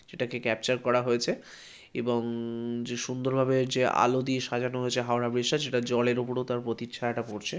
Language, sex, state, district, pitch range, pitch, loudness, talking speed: Bengali, male, West Bengal, Kolkata, 120-125 Hz, 125 Hz, -29 LUFS, 165 wpm